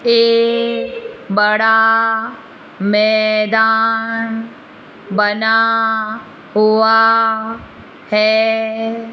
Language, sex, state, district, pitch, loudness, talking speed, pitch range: Hindi, female, Rajasthan, Jaipur, 225 Hz, -14 LUFS, 40 wpm, 220-225 Hz